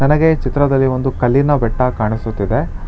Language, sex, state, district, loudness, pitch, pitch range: Kannada, male, Karnataka, Bangalore, -16 LUFS, 130 Hz, 110-140 Hz